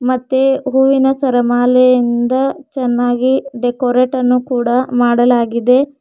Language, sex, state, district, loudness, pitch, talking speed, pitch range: Kannada, female, Karnataka, Bidar, -13 LUFS, 250 Hz, 80 wpm, 245-265 Hz